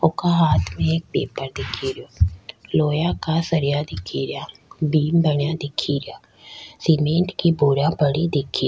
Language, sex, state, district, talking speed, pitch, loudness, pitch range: Rajasthani, female, Rajasthan, Nagaur, 150 wpm, 145 Hz, -21 LUFS, 130-160 Hz